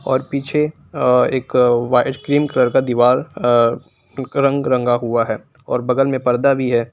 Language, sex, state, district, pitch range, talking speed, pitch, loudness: Hindi, male, Jharkhand, Palamu, 120-140 Hz, 175 wpm, 125 Hz, -17 LUFS